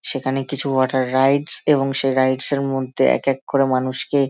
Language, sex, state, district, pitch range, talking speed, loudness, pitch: Bengali, male, West Bengal, Malda, 130-140 Hz, 195 wpm, -19 LUFS, 135 Hz